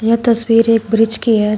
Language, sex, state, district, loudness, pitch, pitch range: Hindi, female, Uttar Pradesh, Shamli, -13 LUFS, 225 Hz, 220-230 Hz